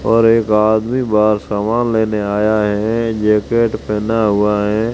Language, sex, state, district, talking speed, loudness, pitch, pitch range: Hindi, male, Rajasthan, Jaisalmer, 145 wpm, -15 LUFS, 110 Hz, 105-115 Hz